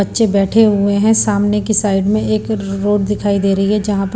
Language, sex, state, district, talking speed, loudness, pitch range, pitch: Hindi, female, Punjab, Pathankot, 230 wpm, -14 LUFS, 200-215 Hz, 205 Hz